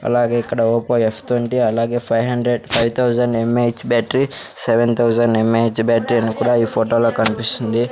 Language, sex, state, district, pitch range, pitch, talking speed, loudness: Telugu, male, Andhra Pradesh, Sri Satya Sai, 115-120 Hz, 115 Hz, 150 wpm, -17 LUFS